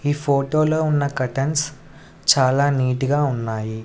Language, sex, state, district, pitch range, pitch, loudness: Telugu, male, Andhra Pradesh, Sri Satya Sai, 130-150 Hz, 140 Hz, -20 LUFS